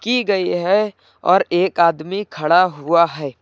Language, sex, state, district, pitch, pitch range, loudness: Hindi, male, Uttar Pradesh, Lucknow, 175 Hz, 165-200 Hz, -17 LUFS